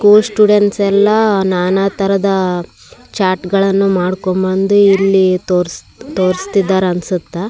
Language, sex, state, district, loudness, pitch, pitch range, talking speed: Kannada, male, Karnataka, Raichur, -13 LUFS, 195 Hz, 185-200 Hz, 110 wpm